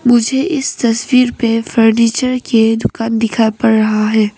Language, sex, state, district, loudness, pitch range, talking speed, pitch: Hindi, female, Arunachal Pradesh, Papum Pare, -13 LUFS, 225-245 Hz, 150 wpm, 230 Hz